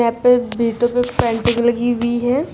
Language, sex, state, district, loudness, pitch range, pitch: Hindi, female, Uttar Pradesh, Shamli, -17 LUFS, 235-245 Hz, 240 Hz